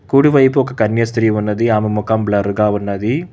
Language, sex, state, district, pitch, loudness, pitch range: Telugu, male, Telangana, Hyderabad, 110 Hz, -15 LUFS, 105-125 Hz